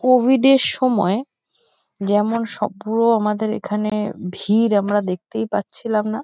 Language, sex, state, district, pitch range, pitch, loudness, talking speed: Bengali, female, West Bengal, Kolkata, 205-230 Hz, 215 Hz, -19 LUFS, 125 wpm